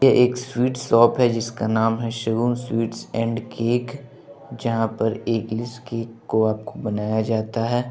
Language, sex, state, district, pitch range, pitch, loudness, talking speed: Hindi, male, Bihar, Begusarai, 115-120 Hz, 115 Hz, -22 LUFS, 160 wpm